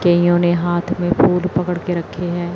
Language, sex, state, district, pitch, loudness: Hindi, female, Chandigarh, Chandigarh, 175 Hz, -17 LUFS